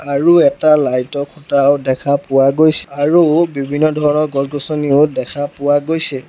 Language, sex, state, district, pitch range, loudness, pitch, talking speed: Assamese, male, Assam, Sonitpur, 140-155 Hz, -14 LUFS, 145 Hz, 145 wpm